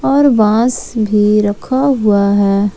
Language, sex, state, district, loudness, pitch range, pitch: Hindi, female, Jharkhand, Ranchi, -12 LUFS, 205-255 Hz, 215 Hz